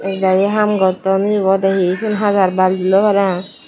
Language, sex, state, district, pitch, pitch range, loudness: Chakma, female, Tripura, Dhalai, 195 Hz, 185-205 Hz, -15 LUFS